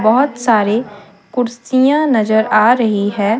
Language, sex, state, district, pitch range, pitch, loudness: Hindi, female, Jharkhand, Deoghar, 215-245 Hz, 225 Hz, -14 LUFS